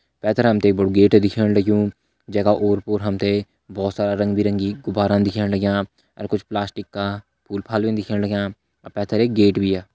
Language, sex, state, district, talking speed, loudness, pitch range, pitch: Hindi, male, Uttarakhand, Tehri Garhwal, 185 wpm, -20 LUFS, 100-105 Hz, 100 Hz